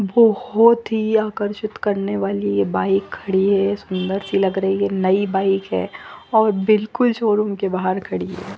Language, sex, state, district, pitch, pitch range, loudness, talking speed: Hindi, female, Punjab, Fazilka, 200 Hz, 190-215 Hz, -19 LUFS, 175 wpm